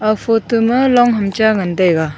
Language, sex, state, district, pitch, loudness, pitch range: Wancho, female, Arunachal Pradesh, Longding, 220 Hz, -14 LUFS, 190-230 Hz